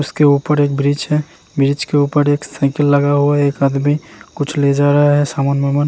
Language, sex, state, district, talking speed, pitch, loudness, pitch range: Hindi, male, Uttarakhand, Tehri Garhwal, 215 wpm, 145 Hz, -15 LUFS, 140-145 Hz